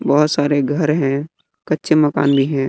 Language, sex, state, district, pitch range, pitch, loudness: Hindi, male, Bihar, West Champaran, 140-155 Hz, 145 Hz, -17 LUFS